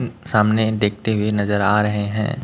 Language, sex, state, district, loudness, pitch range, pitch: Hindi, male, Chhattisgarh, Raipur, -19 LUFS, 105-110 Hz, 105 Hz